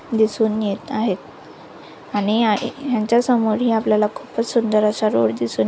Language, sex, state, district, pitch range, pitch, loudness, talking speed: Marathi, female, Maharashtra, Nagpur, 210-235 Hz, 220 Hz, -19 LUFS, 125 wpm